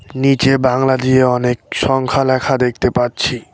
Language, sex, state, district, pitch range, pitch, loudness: Bengali, male, West Bengal, Cooch Behar, 125-135 Hz, 130 Hz, -15 LUFS